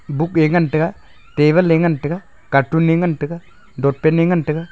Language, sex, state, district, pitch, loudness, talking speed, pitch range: Wancho, male, Arunachal Pradesh, Longding, 160 Hz, -17 LUFS, 205 wpm, 150-170 Hz